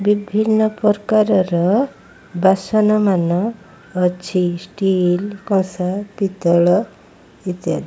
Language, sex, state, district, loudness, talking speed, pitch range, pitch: Odia, female, Odisha, Malkangiri, -17 LUFS, 75 wpm, 180-210 Hz, 195 Hz